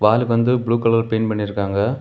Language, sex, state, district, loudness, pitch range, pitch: Tamil, male, Tamil Nadu, Kanyakumari, -19 LUFS, 105-115 Hz, 115 Hz